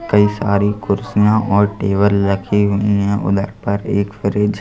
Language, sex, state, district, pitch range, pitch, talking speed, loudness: Hindi, male, Madhya Pradesh, Bhopal, 100-105 Hz, 100 Hz, 170 wpm, -16 LUFS